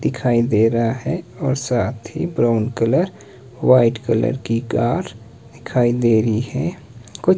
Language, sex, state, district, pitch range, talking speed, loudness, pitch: Hindi, male, Himachal Pradesh, Shimla, 115-130 Hz, 145 wpm, -19 LUFS, 120 Hz